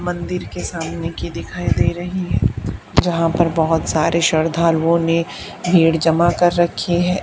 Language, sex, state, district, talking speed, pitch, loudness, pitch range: Hindi, female, Haryana, Charkhi Dadri, 160 wpm, 170 Hz, -18 LUFS, 165-175 Hz